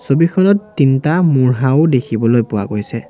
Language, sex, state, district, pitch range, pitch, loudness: Assamese, male, Assam, Sonitpur, 115-160 Hz, 135 Hz, -14 LUFS